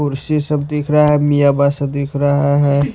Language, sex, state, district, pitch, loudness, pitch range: Hindi, male, Maharashtra, Washim, 145 Hz, -15 LUFS, 140-150 Hz